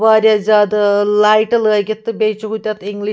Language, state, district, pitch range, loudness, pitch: Kashmiri, Punjab, Kapurthala, 210-220 Hz, -14 LUFS, 215 Hz